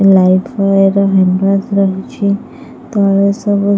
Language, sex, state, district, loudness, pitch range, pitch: Odia, female, Odisha, Khordha, -12 LUFS, 195-200 Hz, 195 Hz